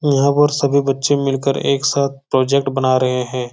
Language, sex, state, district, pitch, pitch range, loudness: Hindi, male, Bihar, Supaul, 135 Hz, 130-140 Hz, -16 LUFS